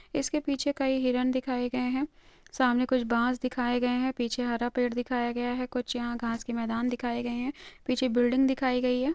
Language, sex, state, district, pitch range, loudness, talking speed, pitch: Hindi, female, Andhra Pradesh, Krishna, 245-260 Hz, -29 LUFS, 210 wpm, 250 Hz